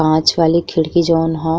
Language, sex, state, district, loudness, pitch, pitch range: Bhojpuri, female, Uttar Pradesh, Ghazipur, -15 LUFS, 165 Hz, 160-165 Hz